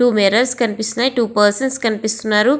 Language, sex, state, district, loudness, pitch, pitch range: Telugu, female, Andhra Pradesh, Visakhapatnam, -16 LUFS, 230 Hz, 215-245 Hz